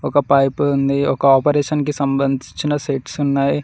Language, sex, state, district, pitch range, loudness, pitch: Telugu, male, Telangana, Mahabubabad, 135-145 Hz, -17 LUFS, 140 Hz